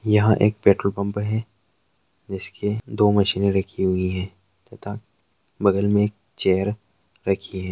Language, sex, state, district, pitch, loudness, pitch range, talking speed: Hindi, male, Bihar, Araria, 100 Hz, -22 LUFS, 95-105 Hz, 140 wpm